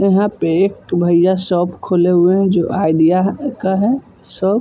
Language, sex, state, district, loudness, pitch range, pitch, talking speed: Hindi, male, Uttar Pradesh, Budaun, -15 LUFS, 175-195 Hz, 185 Hz, 180 wpm